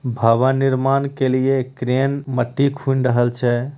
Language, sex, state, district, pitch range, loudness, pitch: Hindi, male, Bihar, Begusarai, 125-135 Hz, -18 LUFS, 130 Hz